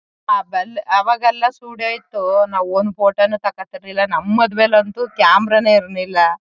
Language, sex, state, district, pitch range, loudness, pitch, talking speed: Kannada, female, Karnataka, Mysore, 195-235 Hz, -16 LUFS, 210 Hz, 160 wpm